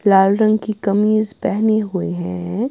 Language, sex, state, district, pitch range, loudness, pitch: Hindi, female, Bihar, West Champaran, 190-215 Hz, -17 LUFS, 210 Hz